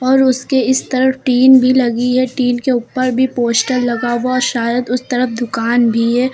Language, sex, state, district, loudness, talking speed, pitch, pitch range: Hindi, female, Uttar Pradesh, Lucknow, -14 LUFS, 200 wpm, 250 Hz, 240-260 Hz